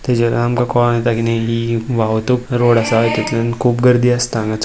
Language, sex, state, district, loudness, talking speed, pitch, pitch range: Konkani, male, Goa, North and South Goa, -15 LUFS, 205 wpm, 120 Hz, 115-120 Hz